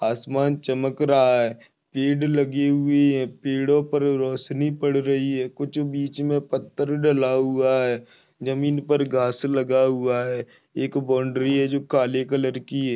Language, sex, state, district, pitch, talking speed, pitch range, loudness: Hindi, male, Maharashtra, Dhule, 135 Hz, 160 wpm, 130-145 Hz, -22 LUFS